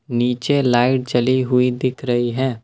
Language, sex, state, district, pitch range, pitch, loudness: Hindi, male, Assam, Kamrup Metropolitan, 120-130 Hz, 125 Hz, -18 LUFS